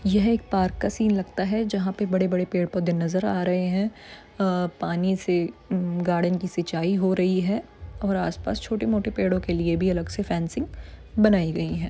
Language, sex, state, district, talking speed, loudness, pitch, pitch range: Hindi, female, Chhattisgarh, Bilaspur, 190 wpm, -25 LUFS, 185 Hz, 175-200 Hz